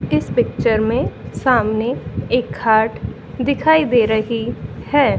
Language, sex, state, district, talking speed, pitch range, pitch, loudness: Hindi, female, Haryana, Jhajjar, 115 wpm, 220-260 Hz, 230 Hz, -18 LUFS